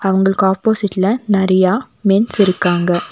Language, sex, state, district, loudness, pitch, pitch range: Tamil, female, Tamil Nadu, Nilgiris, -15 LUFS, 195 Hz, 185-205 Hz